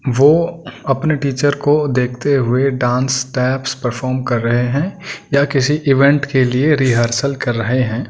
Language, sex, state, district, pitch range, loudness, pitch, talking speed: Hindi, male, Delhi, New Delhi, 125-145 Hz, -16 LUFS, 135 Hz, 155 wpm